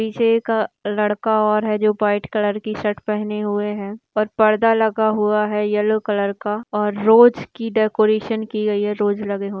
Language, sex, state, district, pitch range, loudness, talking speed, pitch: Hindi, female, Rajasthan, Churu, 210-220 Hz, -19 LUFS, 195 wpm, 215 Hz